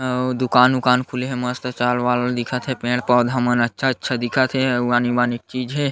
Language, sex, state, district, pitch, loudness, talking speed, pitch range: Chhattisgarhi, male, Chhattisgarh, Sarguja, 125 Hz, -19 LUFS, 190 wpm, 125-130 Hz